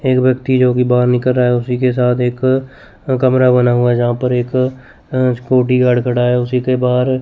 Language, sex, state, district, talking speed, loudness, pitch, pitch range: Hindi, male, Chandigarh, Chandigarh, 235 wpm, -14 LUFS, 125 Hz, 125-130 Hz